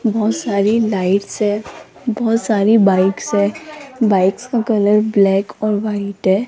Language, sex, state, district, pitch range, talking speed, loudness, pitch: Hindi, female, Rajasthan, Jaipur, 200-225 Hz, 140 wpm, -16 LUFS, 210 Hz